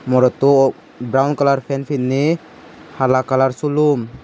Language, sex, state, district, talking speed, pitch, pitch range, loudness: Chakma, male, Tripura, Unakoti, 115 wpm, 135 Hz, 130-145 Hz, -17 LUFS